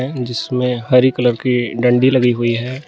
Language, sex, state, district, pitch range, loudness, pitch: Hindi, male, Jharkhand, Garhwa, 120-130 Hz, -15 LUFS, 125 Hz